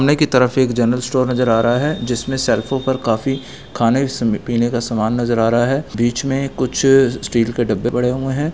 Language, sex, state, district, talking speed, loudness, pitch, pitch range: Hindi, male, Bihar, Gaya, 220 wpm, -17 LUFS, 125 Hz, 120-135 Hz